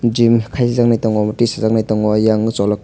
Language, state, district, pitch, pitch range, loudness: Kokborok, Tripura, West Tripura, 110 Hz, 105-115 Hz, -15 LUFS